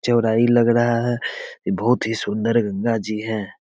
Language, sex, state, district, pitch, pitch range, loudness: Hindi, male, Bihar, Begusarai, 115 Hz, 110-120 Hz, -20 LUFS